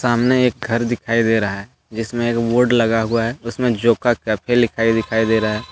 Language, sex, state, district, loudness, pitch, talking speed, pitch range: Hindi, male, Jharkhand, Deoghar, -18 LUFS, 115 Hz, 220 wpm, 115-120 Hz